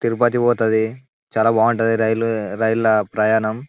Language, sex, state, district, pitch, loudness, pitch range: Telugu, male, Telangana, Nalgonda, 115 Hz, -18 LUFS, 110-115 Hz